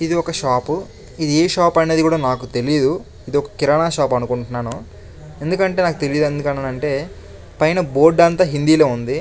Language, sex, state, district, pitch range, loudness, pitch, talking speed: Telugu, male, Andhra Pradesh, Chittoor, 125-165 Hz, -17 LUFS, 145 Hz, 170 wpm